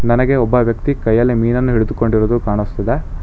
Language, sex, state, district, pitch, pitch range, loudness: Kannada, male, Karnataka, Bangalore, 115 Hz, 110-125 Hz, -15 LUFS